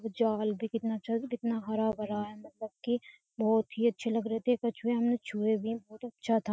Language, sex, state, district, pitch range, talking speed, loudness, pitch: Hindi, female, Uttar Pradesh, Jyotiba Phule Nagar, 220-235 Hz, 210 wpm, -32 LUFS, 225 Hz